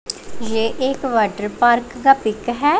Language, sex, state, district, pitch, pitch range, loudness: Hindi, female, Punjab, Pathankot, 240 Hz, 225-265 Hz, -18 LUFS